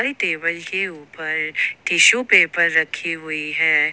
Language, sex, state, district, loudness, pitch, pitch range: Hindi, female, Jharkhand, Ranchi, -18 LUFS, 165 Hz, 155-180 Hz